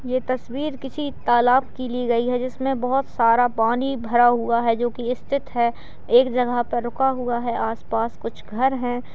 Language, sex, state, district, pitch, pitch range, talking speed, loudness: Hindi, female, Bihar, Madhepura, 245 Hz, 235-255 Hz, 205 wpm, -22 LUFS